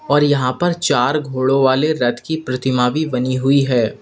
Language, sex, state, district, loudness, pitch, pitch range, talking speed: Hindi, male, Uttar Pradesh, Lalitpur, -17 LUFS, 135 Hz, 130-150 Hz, 195 wpm